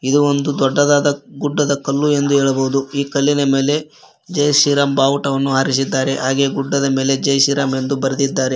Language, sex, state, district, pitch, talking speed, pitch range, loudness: Kannada, male, Karnataka, Koppal, 140 Hz, 155 wpm, 135-145 Hz, -16 LUFS